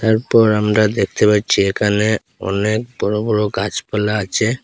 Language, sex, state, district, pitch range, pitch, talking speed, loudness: Bengali, male, Assam, Hailakandi, 105-110 Hz, 105 Hz, 130 wpm, -17 LUFS